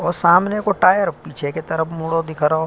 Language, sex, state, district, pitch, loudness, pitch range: Hindi, male, Uttar Pradesh, Hamirpur, 165 Hz, -18 LUFS, 160-185 Hz